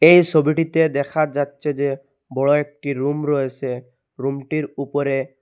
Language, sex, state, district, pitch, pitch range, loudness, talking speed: Bengali, male, Assam, Hailakandi, 140 Hz, 135-155 Hz, -20 LUFS, 120 wpm